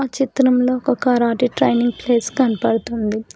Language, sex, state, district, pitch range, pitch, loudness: Telugu, female, Telangana, Hyderabad, 230-255 Hz, 245 Hz, -18 LUFS